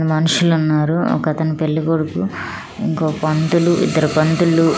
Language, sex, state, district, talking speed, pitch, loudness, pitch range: Telugu, female, Andhra Pradesh, Manyam, 90 wpm, 155 Hz, -17 LUFS, 155-165 Hz